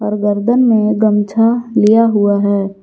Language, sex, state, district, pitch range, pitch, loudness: Hindi, female, Jharkhand, Garhwa, 205-225 Hz, 210 Hz, -13 LUFS